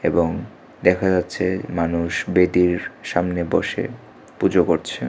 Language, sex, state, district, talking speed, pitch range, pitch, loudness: Bengali, male, Tripura, West Tripura, 105 wpm, 85-90 Hz, 90 Hz, -21 LUFS